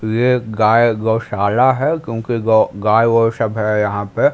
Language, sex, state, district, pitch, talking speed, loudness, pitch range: Hindi, male, Bihar, Patna, 115 Hz, 165 wpm, -16 LUFS, 110-120 Hz